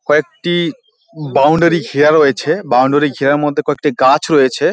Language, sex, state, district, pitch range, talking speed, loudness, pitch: Bengali, male, West Bengal, Dakshin Dinajpur, 140-170 Hz, 125 wpm, -13 LUFS, 150 Hz